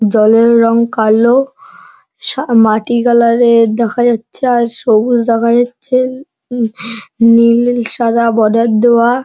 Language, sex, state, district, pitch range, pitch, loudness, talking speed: Bengali, male, West Bengal, Dakshin Dinajpur, 230-245 Hz, 235 Hz, -11 LUFS, 115 wpm